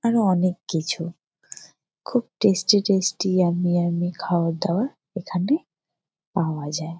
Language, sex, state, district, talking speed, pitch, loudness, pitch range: Bengali, female, West Bengal, Jalpaiguri, 120 wpm, 180 Hz, -23 LUFS, 170-200 Hz